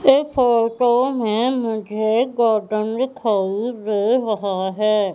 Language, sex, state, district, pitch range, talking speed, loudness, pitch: Hindi, female, Madhya Pradesh, Umaria, 215-245 Hz, 105 wpm, -19 LUFS, 225 Hz